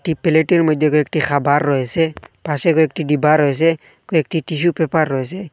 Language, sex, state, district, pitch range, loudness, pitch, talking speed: Bengali, male, Assam, Hailakandi, 150-165 Hz, -17 LUFS, 160 Hz, 150 wpm